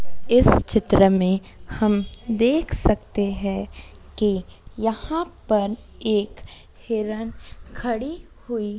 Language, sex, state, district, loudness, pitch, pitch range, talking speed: Hindi, female, Madhya Pradesh, Dhar, -22 LUFS, 215 Hz, 200-230 Hz, 95 wpm